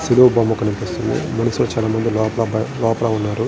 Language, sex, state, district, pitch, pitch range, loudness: Telugu, male, Andhra Pradesh, Srikakulam, 115 Hz, 110-115 Hz, -18 LUFS